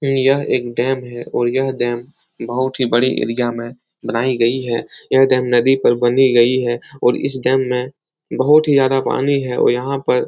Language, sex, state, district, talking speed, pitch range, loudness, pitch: Hindi, male, Uttar Pradesh, Etah, 205 wpm, 120-135 Hz, -17 LUFS, 125 Hz